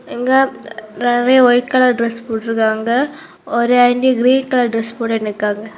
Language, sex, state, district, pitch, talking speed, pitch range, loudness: Tamil, female, Tamil Nadu, Kanyakumari, 245 Hz, 135 wpm, 225-255 Hz, -15 LUFS